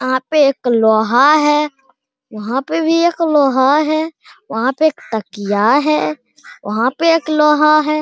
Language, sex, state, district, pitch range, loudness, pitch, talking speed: Hindi, male, Bihar, Araria, 245-305 Hz, -14 LUFS, 280 Hz, 165 wpm